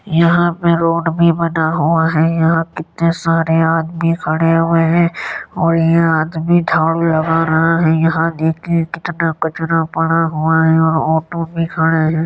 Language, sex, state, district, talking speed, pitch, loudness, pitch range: Hindi, male, Uttar Pradesh, Jyotiba Phule Nagar, 160 wpm, 165 Hz, -15 LUFS, 160-165 Hz